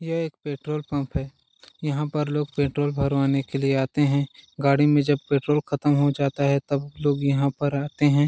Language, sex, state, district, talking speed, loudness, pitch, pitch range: Hindi, male, Chhattisgarh, Balrampur, 205 wpm, -24 LUFS, 145 Hz, 140-150 Hz